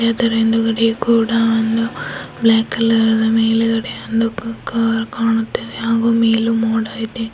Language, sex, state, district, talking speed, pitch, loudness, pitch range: Kannada, female, Karnataka, Bidar, 125 wpm, 225 Hz, -17 LUFS, 225-230 Hz